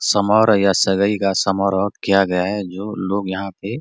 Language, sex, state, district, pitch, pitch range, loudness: Hindi, male, Chhattisgarh, Bastar, 100 Hz, 95-100 Hz, -18 LUFS